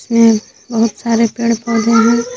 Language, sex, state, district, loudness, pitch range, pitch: Hindi, female, Jharkhand, Garhwa, -14 LUFS, 225-235 Hz, 230 Hz